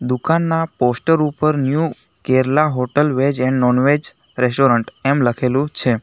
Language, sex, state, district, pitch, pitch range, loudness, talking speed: Gujarati, male, Gujarat, Navsari, 135 Hz, 125-150 Hz, -17 LUFS, 130 wpm